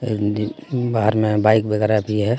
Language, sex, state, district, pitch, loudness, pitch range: Hindi, male, Jharkhand, Deoghar, 110 Hz, -19 LUFS, 105-110 Hz